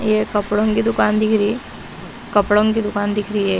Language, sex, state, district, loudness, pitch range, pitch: Hindi, female, Punjab, Pathankot, -18 LUFS, 205-220 Hz, 210 Hz